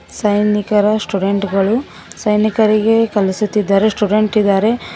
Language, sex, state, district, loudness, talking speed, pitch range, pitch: Kannada, female, Karnataka, Koppal, -15 LUFS, 85 wpm, 205-215 Hz, 210 Hz